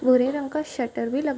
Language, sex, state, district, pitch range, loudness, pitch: Hindi, female, Bihar, Bhagalpur, 255-290 Hz, -25 LUFS, 265 Hz